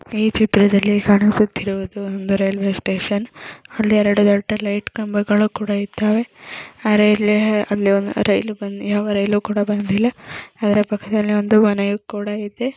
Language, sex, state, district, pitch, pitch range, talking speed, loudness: Kannada, female, Karnataka, Belgaum, 205 Hz, 200-215 Hz, 105 wpm, -18 LUFS